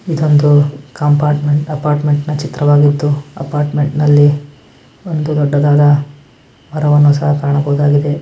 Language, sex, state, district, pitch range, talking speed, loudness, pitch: Kannada, male, Karnataka, Mysore, 145-150 Hz, 100 wpm, -13 LUFS, 145 Hz